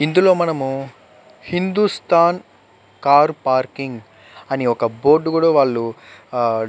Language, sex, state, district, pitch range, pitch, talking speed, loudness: Telugu, male, Andhra Pradesh, Chittoor, 120-165 Hz, 135 Hz, 100 wpm, -18 LUFS